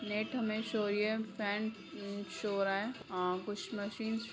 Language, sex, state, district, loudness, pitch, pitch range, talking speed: Hindi, female, Bihar, Jamui, -37 LUFS, 210 Hz, 200-220 Hz, 220 wpm